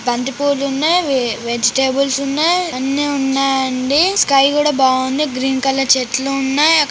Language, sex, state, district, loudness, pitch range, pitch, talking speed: Telugu, female, Andhra Pradesh, Chittoor, -15 LUFS, 265-285 Hz, 270 Hz, 120 wpm